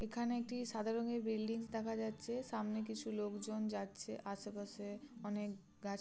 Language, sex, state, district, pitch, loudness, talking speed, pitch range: Bengali, female, West Bengal, Purulia, 220 Hz, -43 LUFS, 140 wpm, 205-230 Hz